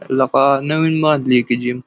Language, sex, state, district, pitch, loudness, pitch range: Marathi, male, Maharashtra, Pune, 130 Hz, -16 LUFS, 125-150 Hz